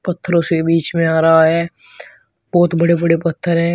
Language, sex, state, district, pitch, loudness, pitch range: Hindi, male, Uttar Pradesh, Shamli, 170 Hz, -15 LUFS, 165-170 Hz